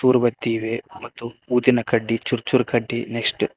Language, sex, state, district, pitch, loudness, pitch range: Kannada, male, Karnataka, Koppal, 120 Hz, -21 LUFS, 115-125 Hz